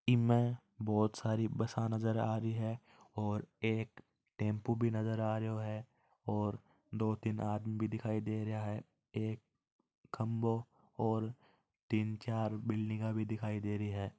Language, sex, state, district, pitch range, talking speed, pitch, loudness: Marwari, male, Rajasthan, Churu, 110-115 Hz, 135 wpm, 110 Hz, -37 LUFS